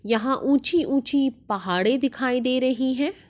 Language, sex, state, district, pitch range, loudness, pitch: Hindi, female, Uttar Pradesh, Etah, 240-275 Hz, -23 LUFS, 260 Hz